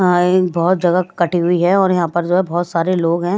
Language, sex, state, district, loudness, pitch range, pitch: Hindi, female, Maharashtra, Washim, -16 LUFS, 175-185 Hz, 175 Hz